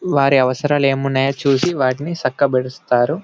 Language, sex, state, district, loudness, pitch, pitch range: Telugu, male, Telangana, Karimnagar, -17 LUFS, 135 Hz, 130-145 Hz